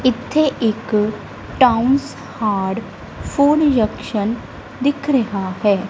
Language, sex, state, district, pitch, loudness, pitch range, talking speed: Punjabi, female, Punjab, Kapurthala, 225 Hz, -18 LUFS, 210-275 Hz, 90 wpm